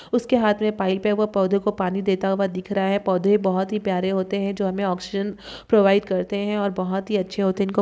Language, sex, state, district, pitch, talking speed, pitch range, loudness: Hindi, female, Chhattisgarh, Bilaspur, 195 Hz, 255 wpm, 190-205 Hz, -22 LUFS